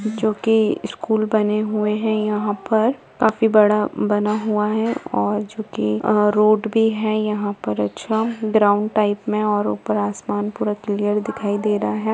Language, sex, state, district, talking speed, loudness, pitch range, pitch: Hindi, female, Bihar, Lakhisarai, 175 wpm, -20 LUFS, 205-220 Hz, 210 Hz